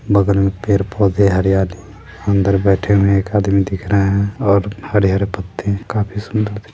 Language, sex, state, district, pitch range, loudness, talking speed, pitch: Hindi, male, Bihar, Sitamarhi, 95-105 Hz, -16 LUFS, 185 wpm, 100 Hz